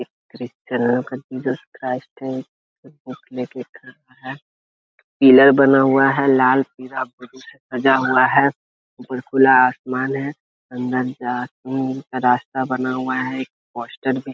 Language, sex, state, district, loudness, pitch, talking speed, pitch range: Hindi, male, Uttar Pradesh, Etah, -18 LUFS, 130 Hz, 160 wpm, 125-135 Hz